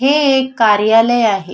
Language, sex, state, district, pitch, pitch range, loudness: Marathi, female, Maharashtra, Chandrapur, 230 Hz, 215-265 Hz, -12 LUFS